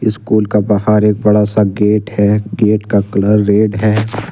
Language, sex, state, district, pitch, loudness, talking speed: Hindi, male, Jharkhand, Deoghar, 105 Hz, -13 LUFS, 180 wpm